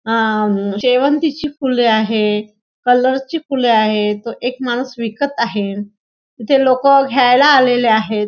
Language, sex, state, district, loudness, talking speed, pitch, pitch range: Marathi, female, Maharashtra, Nagpur, -15 LUFS, 140 wpm, 240 Hz, 215-265 Hz